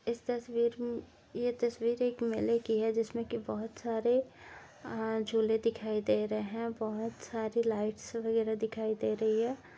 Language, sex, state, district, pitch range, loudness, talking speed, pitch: Hindi, female, Uttar Pradesh, Jyotiba Phule Nagar, 220-235 Hz, -33 LUFS, 160 wpm, 225 Hz